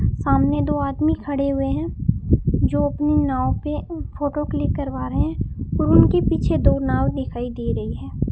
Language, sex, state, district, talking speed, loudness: Hindi, male, Rajasthan, Bikaner, 175 wpm, -21 LUFS